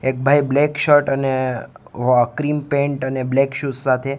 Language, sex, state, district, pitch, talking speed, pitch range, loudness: Gujarati, male, Gujarat, Gandhinagar, 135 Hz, 170 wpm, 130-145 Hz, -18 LUFS